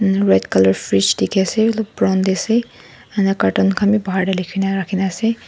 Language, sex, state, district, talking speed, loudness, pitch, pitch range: Nagamese, female, Nagaland, Dimapur, 195 wpm, -17 LUFS, 195 Hz, 190-205 Hz